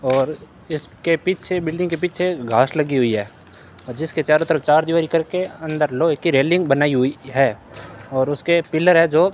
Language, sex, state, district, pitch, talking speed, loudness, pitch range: Hindi, male, Rajasthan, Bikaner, 155 Hz, 200 wpm, -19 LUFS, 130-165 Hz